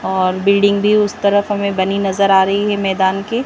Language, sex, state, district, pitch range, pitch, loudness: Hindi, female, Madhya Pradesh, Bhopal, 190-205 Hz, 200 Hz, -15 LUFS